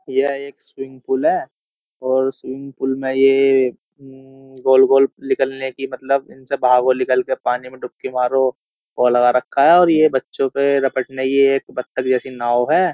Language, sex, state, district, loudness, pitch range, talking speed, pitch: Hindi, male, Uttar Pradesh, Jyotiba Phule Nagar, -17 LUFS, 130-135 Hz, 160 wpm, 130 Hz